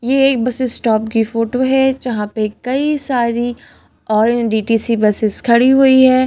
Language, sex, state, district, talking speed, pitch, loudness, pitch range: Hindi, female, Delhi, New Delhi, 160 wpm, 240 Hz, -15 LUFS, 225-260 Hz